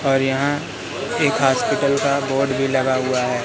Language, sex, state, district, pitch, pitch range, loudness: Hindi, male, Madhya Pradesh, Katni, 135 Hz, 130-140 Hz, -19 LUFS